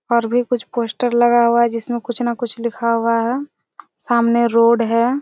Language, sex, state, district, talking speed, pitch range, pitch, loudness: Hindi, female, Chhattisgarh, Raigarh, 195 wpm, 230-240 Hz, 235 Hz, -17 LUFS